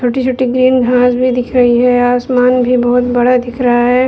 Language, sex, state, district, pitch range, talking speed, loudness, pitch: Hindi, female, Uttar Pradesh, Budaun, 245-255 Hz, 220 wpm, -11 LUFS, 250 Hz